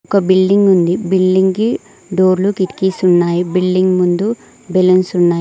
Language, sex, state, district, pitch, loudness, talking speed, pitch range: Telugu, female, Telangana, Mahabubabad, 185 Hz, -13 LUFS, 135 wpm, 180-190 Hz